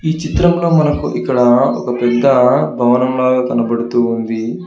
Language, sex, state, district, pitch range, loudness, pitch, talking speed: Telugu, male, Telangana, Hyderabad, 120-145 Hz, -14 LUFS, 125 Hz, 130 wpm